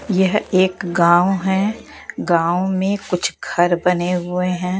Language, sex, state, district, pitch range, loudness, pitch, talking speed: Hindi, female, Bihar, West Champaran, 175-190 Hz, -18 LUFS, 180 Hz, 135 wpm